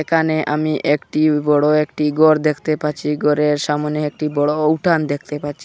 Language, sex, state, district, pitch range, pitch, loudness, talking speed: Bengali, male, Assam, Hailakandi, 150-155 Hz, 150 Hz, -17 LUFS, 160 wpm